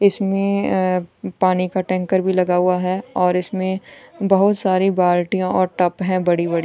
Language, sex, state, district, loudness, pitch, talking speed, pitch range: Hindi, female, Punjab, Kapurthala, -19 LUFS, 185 Hz, 155 wpm, 180-195 Hz